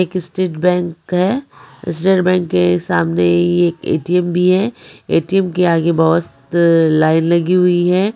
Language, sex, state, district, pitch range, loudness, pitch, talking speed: Maithili, male, Bihar, Supaul, 160-180 Hz, -15 LUFS, 175 Hz, 155 wpm